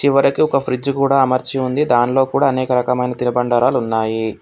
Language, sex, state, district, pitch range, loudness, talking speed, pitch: Telugu, male, Telangana, Hyderabad, 125-135 Hz, -16 LUFS, 165 wpm, 130 Hz